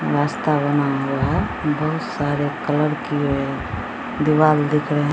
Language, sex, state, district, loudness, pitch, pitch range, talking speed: Hindi, female, Bihar, Samastipur, -20 LUFS, 145 Hz, 145-150 Hz, 140 wpm